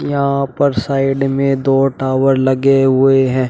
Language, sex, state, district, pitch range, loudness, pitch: Hindi, male, Uttar Pradesh, Shamli, 130-135 Hz, -14 LUFS, 135 Hz